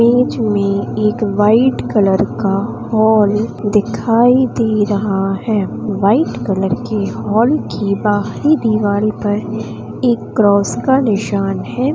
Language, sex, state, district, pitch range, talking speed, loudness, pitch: Hindi, female, Bihar, Vaishali, 200-230 Hz, 120 wpm, -15 LUFS, 210 Hz